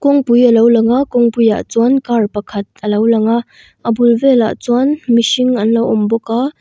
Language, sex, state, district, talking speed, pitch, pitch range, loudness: Mizo, female, Mizoram, Aizawl, 220 wpm, 235 Hz, 225-245 Hz, -13 LUFS